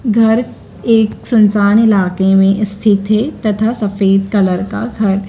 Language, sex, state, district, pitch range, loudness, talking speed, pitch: Hindi, female, Madhya Pradesh, Dhar, 195-225 Hz, -13 LUFS, 135 wpm, 210 Hz